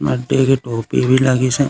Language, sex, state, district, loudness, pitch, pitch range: Chhattisgarhi, male, Chhattisgarh, Raigarh, -16 LUFS, 130 Hz, 125-135 Hz